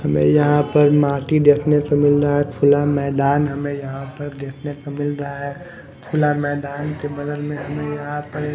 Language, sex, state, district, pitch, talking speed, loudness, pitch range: Hindi, female, Himachal Pradesh, Shimla, 145 Hz, 190 wpm, -19 LUFS, 140-145 Hz